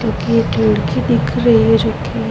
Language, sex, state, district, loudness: Hindi, female, Bihar, Vaishali, -15 LUFS